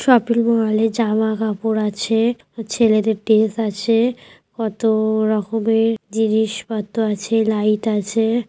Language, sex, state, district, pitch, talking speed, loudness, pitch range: Bengali, female, West Bengal, Paschim Medinipur, 220 Hz, 90 wpm, -18 LUFS, 215-225 Hz